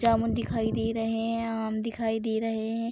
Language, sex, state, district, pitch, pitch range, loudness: Hindi, female, Bihar, Araria, 225 Hz, 225-230 Hz, -29 LUFS